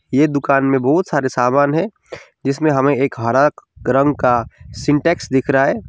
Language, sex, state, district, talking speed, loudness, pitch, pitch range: Hindi, male, West Bengal, Alipurduar, 175 wpm, -16 LUFS, 135 Hz, 130-145 Hz